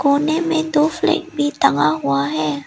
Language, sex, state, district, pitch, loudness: Hindi, female, Arunachal Pradesh, Lower Dibang Valley, 290 Hz, -18 LUFS